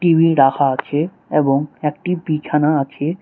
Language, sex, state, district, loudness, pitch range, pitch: Bengali, male, West Bengal, Cooch Behar, -17 LUFS, 140-165 Hz, 150 Hz